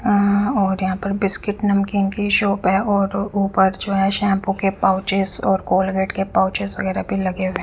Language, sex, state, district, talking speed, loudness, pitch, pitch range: Hindi, female, Punjab, Fazilka, 190 wpm, -19 LUFS, 195 Hz, 190-200 Hz